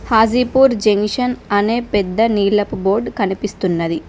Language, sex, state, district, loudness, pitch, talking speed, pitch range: Telugu, female, Telangana, Mahabubabad, -16 LUFS, 210 Hz, 105 wpm, 200-230 Hz